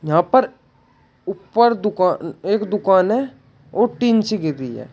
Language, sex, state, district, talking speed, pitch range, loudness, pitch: Hindi, male, Uttar Pradesh, Shamli, 145 wpm, 155-220 Hz, -18 LUFS, 195 Hz